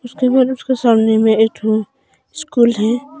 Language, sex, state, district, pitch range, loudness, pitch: Hindi, female, Arunachal Pradesh, Longding, 220-260 Hz, -15 LUFS, 240 Hz